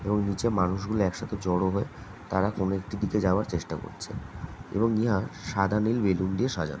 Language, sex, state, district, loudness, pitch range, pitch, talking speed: Bengali, male, West Bengal, Jhargram, -28 LUFS, 90-105 Hz, 100 Hz, 185 wpm